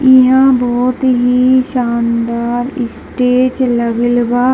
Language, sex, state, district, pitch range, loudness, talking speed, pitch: Hindi, female, Bihar, Darbhanga, 240-255 Hz, -12 LUFS, 90 wpm, 250 Hz